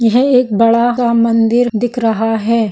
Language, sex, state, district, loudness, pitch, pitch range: Hindi, female, Maharashtra, Solapur, -13 LUFS, 230 Hz, 225-240 Hz